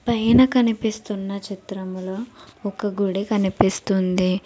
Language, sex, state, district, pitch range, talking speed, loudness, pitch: Telugu, female, Telangana, Hyderabad, 190-220 Hz, 80 wpm, -22 LUFS, 200 Hz